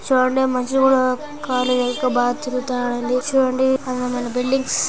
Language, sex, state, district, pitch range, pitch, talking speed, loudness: Telugu, female, Andhra Pradesh, Anantapur, 250-265 Hz, 255 Hz, 160 wpm, -19 LUFS